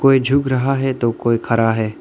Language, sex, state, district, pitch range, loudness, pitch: Hindi, male, Arunachal Pradesh, Lower Dibang Valley, 115-135 Hz, -17 LUFS, 130 Hz